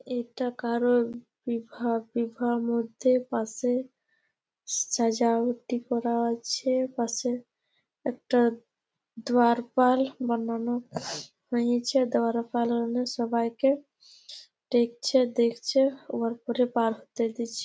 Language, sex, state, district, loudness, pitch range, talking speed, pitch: Bengali, female, West Bengal, Malda, -27 LUFS, 235-250 Hz, 75 wpm, 240 Hz